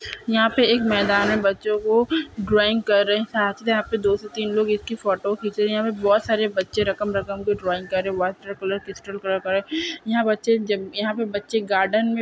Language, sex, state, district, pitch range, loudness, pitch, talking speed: Hindi, female, Maharashtra, Solapur, 200-220 Hz, -22 LUFS, 210 Hz, 210 wpm